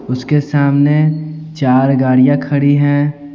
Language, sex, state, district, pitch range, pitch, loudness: Hindi, male, Bihar, Patna, 135-150 Hz, 145 Hz, -13 LUFS